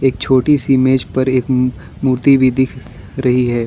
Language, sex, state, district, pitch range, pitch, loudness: Hindi, male, Arunachal Pradesh, Lower Dibang Valley, 125-130 Hz, 130 Hz, -14 LUFS